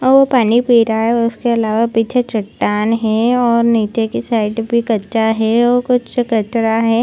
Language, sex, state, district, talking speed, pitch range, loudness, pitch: Hindi, female, Chhattisgarh, Bilaspur, 180 wpm, 225-240 Hz, -15 LUFS, 230 Hz